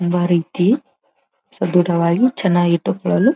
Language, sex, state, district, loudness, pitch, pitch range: Kannada, female, Karnataka, Belgaum, -17 LUFS, 175 Hz, 170-200 Hz